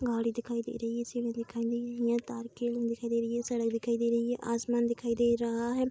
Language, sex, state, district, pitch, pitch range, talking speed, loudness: Hindi, female, Bihar, Vaishali, 235 Hz, 235-240 Hz, 265 wpm, -32 LUFS